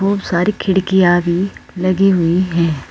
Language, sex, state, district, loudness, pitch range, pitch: Hindi, female, Uttar Pradesh, Saharanpur, -15 LUFS, 175-195 Hz, 185 Hz